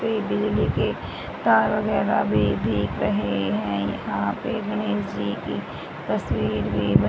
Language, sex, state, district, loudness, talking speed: Hindi, female, Haryana, Charkhi Dadri, -24 LUFS, 145 wpm